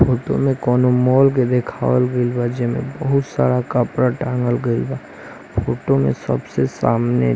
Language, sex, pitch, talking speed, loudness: Bhojpuri, male, 125 Hz, 140 wpm, -18 LUFS